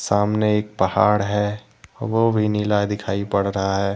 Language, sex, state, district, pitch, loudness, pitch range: Hindi, male, Jharkhand, Deoghar, 105 Hz, -20 LUFS, 100-105 Hz